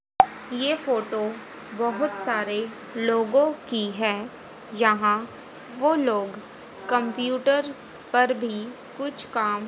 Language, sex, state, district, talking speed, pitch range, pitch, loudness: Hindi, female, Haryana, Rohtak, 95 wpm, 215-260 Hz, 240 Hz, -25 LUFS